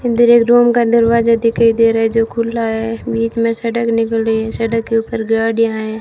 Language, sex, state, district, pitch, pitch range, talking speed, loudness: Hindi, female, Rajasthan, Jaisalmer, 230 Hz, 225-230 Hz, 230 wpm, -14 LUFS